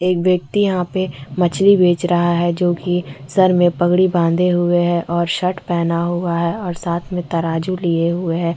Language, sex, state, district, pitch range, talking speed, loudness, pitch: Hindi, female, Chhattisgarh, Korba, 170-180 Hz, 195 wpm, -17 LUFS, 175 Hz